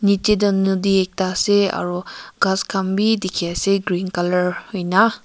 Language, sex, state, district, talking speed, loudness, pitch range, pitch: Nagamese, female, Nagaland, Kohima, 160 wpm, -19 LUFS, 185-205 Hz, 195 Hz